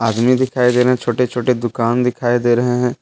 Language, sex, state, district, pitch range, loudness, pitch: Hindi, male, Jharkhand, Deoghar, 120-125 Hz, -16 LUFS, 125 Hz